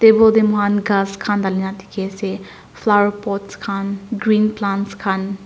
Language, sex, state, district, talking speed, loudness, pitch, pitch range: Nagamese, female, Nagaland, Dimapur, 155 wpm, -18 LUFS, 200 Hz, 195-210 Hz